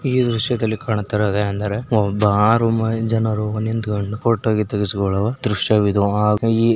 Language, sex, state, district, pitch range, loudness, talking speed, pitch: Kannada, male, Karnataka, Belgaum, 105-115 Hz, -18 LUFS, 115 wpm, 110 Hz